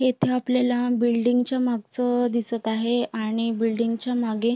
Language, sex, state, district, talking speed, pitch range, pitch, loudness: Marathi, female, Maharashtra, Sindhudurg, 160 wpm, 230-245 Hz, 240 Hz, -24 LUFS